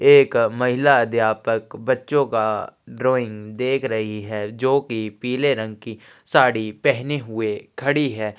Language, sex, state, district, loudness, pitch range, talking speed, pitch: Hindi, male, Chhattisgarh, Sukma, -21 LUFS, 110-135 Hz, 130 wpm, 120 Hz